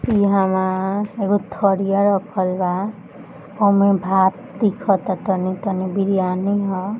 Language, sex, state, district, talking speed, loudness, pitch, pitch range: Bhojpuri, female, Bihar, Gopalganj, 120 wpm, -19 LUFS, 195 Hz, 190-200 Hz